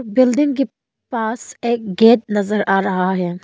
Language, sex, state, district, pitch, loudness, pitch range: Hindi, female, Arunachal Pradesh, Longding, 220 Hz, -17 LUFS, 195-240 Hz